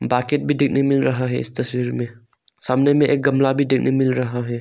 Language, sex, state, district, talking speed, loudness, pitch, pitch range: Hindi, male, Arunachal Pradesh, Longding, 235 wpm, -19 LUFS, 130 Hz, 125-140 Hz